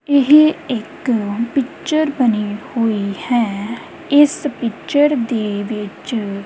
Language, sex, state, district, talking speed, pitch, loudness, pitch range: Punjabi, female, Punjab, Kapurthala, 95 wpm, 235 Hz, -17 LUFS, 215-285 Hz